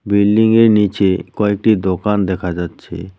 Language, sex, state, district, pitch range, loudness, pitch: Bengali, male, West Bengal, Cooch Behar, 95-105 Hz, -15 LUFS, 100 Hz